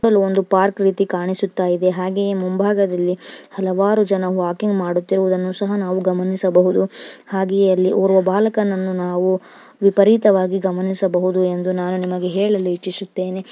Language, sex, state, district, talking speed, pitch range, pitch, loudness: Kannada, female, Karnataka, Dharwad, 110 wpm, 185-200 Hz, 190 Hz, -18 LUFS